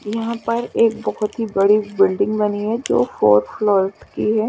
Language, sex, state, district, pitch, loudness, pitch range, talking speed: Hindi, female, Chandigarh, Chandigarh, 210 Hz, -18 LUFS, 195-225 Hz, 200 wpm